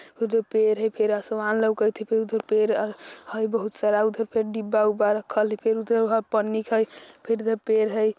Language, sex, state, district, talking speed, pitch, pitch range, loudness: Bajjika, female, Bihar, Vaishali, 190 wpm, 220 Hz, 215-225 Hz, -24 LUFS